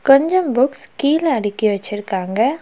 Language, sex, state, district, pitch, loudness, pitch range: Tamil, female, Tamil Nadu, Nilgiris, 260 Hz, -18 LUFS, 205-285 Hz